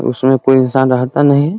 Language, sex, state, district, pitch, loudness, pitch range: Hindi, male, Bihar, Muzaffarpur, 130 Hz, -12 LUFS, 130-140 Hz